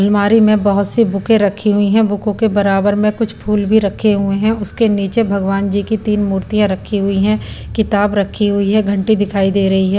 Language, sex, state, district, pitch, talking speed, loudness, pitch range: Hindi, female, Punjab, Pathankot, 205 Hz, 220 wpm, -14 LUFS, 200-215 Hz